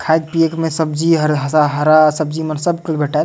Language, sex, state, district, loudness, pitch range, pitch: Sadri, male, Chhattisgarh, Jashpur, -15 LUFS, 150-160 Hz, 155 Hz